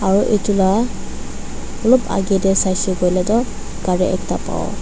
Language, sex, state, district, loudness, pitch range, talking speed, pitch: Nagamese, female, Nagaland, Dimapur, -18 LUFS, 185-215 Hz, 135 wpm, 195 Hz